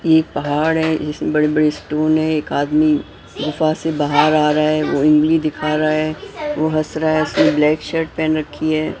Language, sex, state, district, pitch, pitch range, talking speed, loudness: Hindi, male, Maharashtra, Mumbai Suburban, 155 Hz, 150-155 Hz, 205 wpm, -17 LUFS